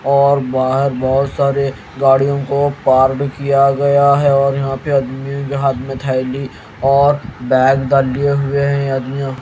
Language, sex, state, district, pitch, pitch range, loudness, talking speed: Hindi, male, Haryana, Jhajjar, 135 Hz, 130-140 Hz, -15 LUFS, 155 wpm